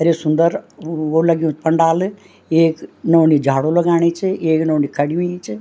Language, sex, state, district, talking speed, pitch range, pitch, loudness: Garhwali, female, Uttarakhand, Tehri Garhwal, 180 wpm, 155-170 Hz, 165 Hz, -16 LUFS